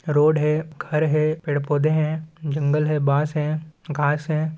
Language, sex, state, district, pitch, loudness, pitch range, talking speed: Chhattisgarhi, male, Chhattisgarh, Balrampur, 150 Hz, -22 LUFS, 150-155 Hz, 170 wpm